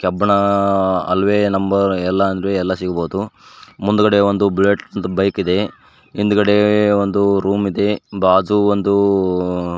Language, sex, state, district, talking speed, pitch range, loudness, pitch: Kannada, male, Karnataka, Koppal, 115 wpm, 95-100 Hz, -16 LUFS, 100 Hz